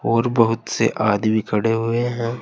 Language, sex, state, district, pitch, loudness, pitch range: Hindi, male, Uttar Pradesh, Saharanpur, 115 Hz, -20 LUFS, 110-115 Hz